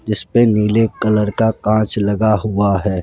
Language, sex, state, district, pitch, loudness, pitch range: Hindi, male, Rajasthan, Jaipur, 105 Hz, -16 LUFS, 100-110 Hz